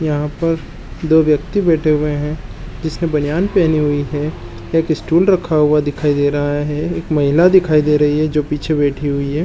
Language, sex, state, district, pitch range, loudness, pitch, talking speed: Chhattisgarhi, male, Chhattisgarh, Jashpur, 145-160 Hz, -16 LUFS, 150 Hz, 190 wpm